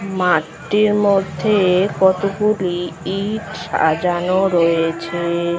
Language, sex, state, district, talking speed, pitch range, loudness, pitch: Bengali, female, West Bengal, Malda, 75 wpm, 170-200 Hz, -17 LUFS, 185 Hz